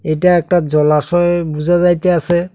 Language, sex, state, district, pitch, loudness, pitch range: Bengali, male, Tripura, South Tripura, 175 Hz, -14 LUFS, 155-175 Hz